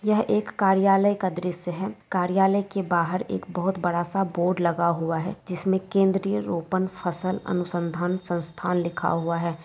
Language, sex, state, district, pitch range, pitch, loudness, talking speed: Hindi, female, West Bengal, Jalpaiguri, 175-195 Hz, 180 Hz, -25 LUFS, 160 wpm